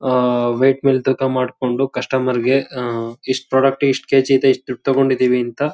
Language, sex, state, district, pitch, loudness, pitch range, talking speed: Kannada, male, Karnataka, Shimoga, 130 Hz, -17 LUFS, 125-135 Hz, 200 wpm